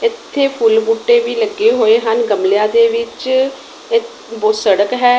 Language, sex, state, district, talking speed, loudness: Punjabi, female, Punjab, Kapurthala, 160 wpm, -14 LUFS